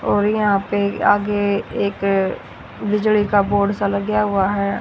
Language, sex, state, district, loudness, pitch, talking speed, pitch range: Hindi, female, Haryana, Rohtak, -19 LUFS, 205 Hz, 150 wpm, 200-205 Hz